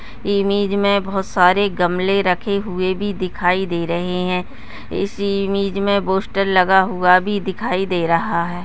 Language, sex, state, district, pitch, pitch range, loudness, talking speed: Hindi, female, Uttarakhand, Tehri Garhwal, 190 Hz, 180-200 Hz, -18 LUFS, 160 wpm